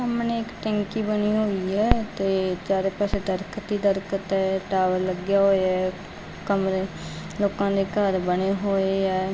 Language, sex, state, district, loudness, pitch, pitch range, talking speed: Punjabi, female, Punjab, Fazilka, -24 LUFS, 195 Hz, 190-205 Hz, 155 wpm